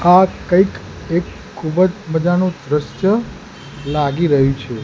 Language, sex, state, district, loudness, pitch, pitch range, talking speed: Gujarati, male, Gujarat, Gandhinagar, -17 LUFS, 170 Hz, 145-185 Hz, 110 wpm